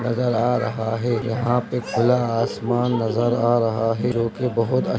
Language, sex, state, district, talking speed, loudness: Hindi, female, Bihar, Begusarai, 205 wpm, -21 LUFS